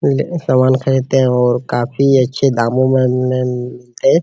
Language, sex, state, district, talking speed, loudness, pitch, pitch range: Hindi, male, Bihar, Araria, 155 wpm, -15 LUFS, 130 Hz, 125-135 Hz